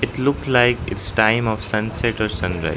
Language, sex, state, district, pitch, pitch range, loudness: English, male, Arunachal Pradesh, Lower Dibang Valley, 110 Hz, 100-120 Hz, -19 LUFS